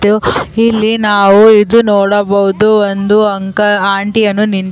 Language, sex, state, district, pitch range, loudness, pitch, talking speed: Kannada, female, Karnataka, Chamarajanagar, 200-215 Hz, -10 LUFS, 205 Hz, 115 wpm